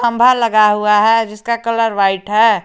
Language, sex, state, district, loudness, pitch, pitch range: Hindi, male, Jharkhand, Garhwa, -13 LUFS, 220 Hz, 210-230 Hz